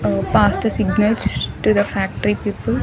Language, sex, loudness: English, female, -17 LUFS